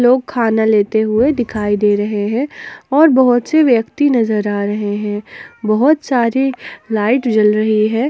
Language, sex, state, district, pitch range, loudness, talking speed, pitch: Hindi, female, Jharkhand, Ranchi, 210-255 Hz, -14 LUFS, 165 wpm, 225 Hz